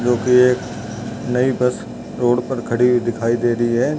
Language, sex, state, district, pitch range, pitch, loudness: Hindi, male, Uttar Pradesh, Ghazipur, 120-125 Hz, 120 Hz, -18 LUFS